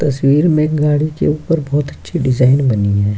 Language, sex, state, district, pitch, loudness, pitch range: Hindi, male, Bihar, Kishanganj, 145 Hz, -15 LUFS, 130-155 Hz